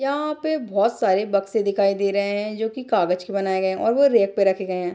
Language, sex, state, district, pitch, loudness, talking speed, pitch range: Hindi, female, Bihar, Darbhanga, 200 Hz, -21 LUFS, 280 wpm, 195-230 Hz